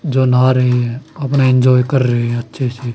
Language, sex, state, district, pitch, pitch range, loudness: Hindi, male, Haryana, Charkhi Dadri, 125 Hz, 120-130 Hz, -14 LUFS